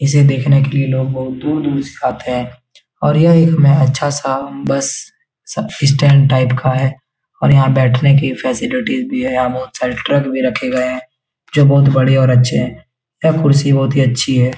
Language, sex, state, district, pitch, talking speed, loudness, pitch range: Hindi, male, Bihar, Jahanabad, 135 Hz, 200 wpm, -14 LUFS, 130-145 Hz